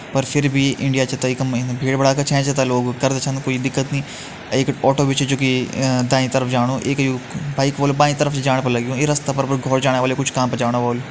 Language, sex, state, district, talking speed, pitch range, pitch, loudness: Hindi, male, Uttarakhand, Uttarkashi, 230 wpm, 130-140 Hz, 135 Hz, -19 LUFS